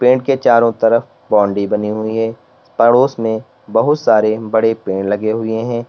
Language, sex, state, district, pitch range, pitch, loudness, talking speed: Hindi, male, Uttar Pradesh, Lalitpur, 110-120 Hz, 115 Hz, -15 LUFS, 165 wpm